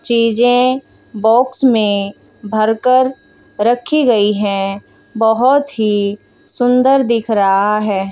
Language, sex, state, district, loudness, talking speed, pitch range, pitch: Hindi, female, Haryana, Jhajjar, -13 LUFS, 95 wpm, 205-250 Hz, 225 Hz